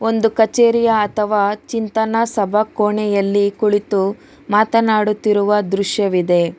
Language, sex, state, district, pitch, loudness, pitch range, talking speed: Kannada, female, Karnataka, Bangalore, 210 Hz, -16 LUFS, 200-220 Hz, 80 wpm